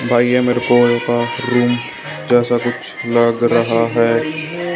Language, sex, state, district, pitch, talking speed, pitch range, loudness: Hindi, male, Haryana, Jhajjar, 120 Hz, 140 wpm, 120-125 Hz, -16 LUFS